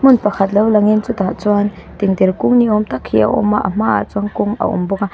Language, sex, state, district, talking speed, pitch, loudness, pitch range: Mizo, female, Mizoram, Aizawl, 290 wpm, 205 Hz, -15 LUFS, 190-215 Hz